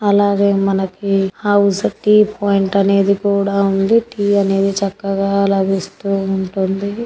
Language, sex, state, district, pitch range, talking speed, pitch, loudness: Telugu, female, Andhra Pradesh, Krishna, 195-200 Hz, 110 wpm, 200 Hz, -15 LUFS